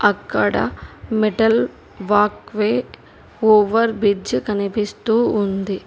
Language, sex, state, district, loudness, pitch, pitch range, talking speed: Telugu, female, Telangana, Hyderabad, -18 LUFS, 215 Hz, 205-225 Hz, 70 wpm